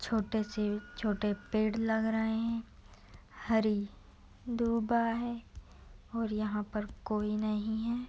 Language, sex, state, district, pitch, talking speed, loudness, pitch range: Hindi, female, Uttar Pradesh, Jalaun, 220 Hz, 120 wpm, -33 LUFS, 210-230 Hz